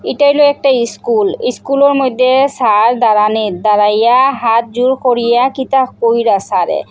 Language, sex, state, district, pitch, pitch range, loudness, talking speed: Bengali, female, Assam, Hailakandi, 250 Hz, 225-270 Hz, -12 LUFS, 130 wpm